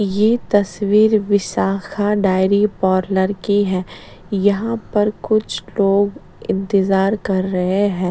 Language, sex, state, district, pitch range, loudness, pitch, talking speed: Hindi, female, Bihar, Patna, 190-210 Hz, -17 LUFS, 200 Hz, 120 wpm